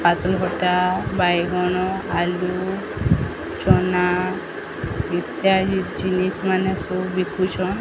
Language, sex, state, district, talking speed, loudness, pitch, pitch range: Odia, female, Odisha, Sambalpur, 70 wpm, -21 LUFS, 185 Hz, 180-190 Hz